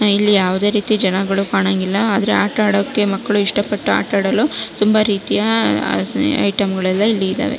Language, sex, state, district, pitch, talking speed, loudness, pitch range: Kannada, female, Karnataka, Raichur, 205 Hz, 160 wpm, -16 LUFS, 195-210 Hz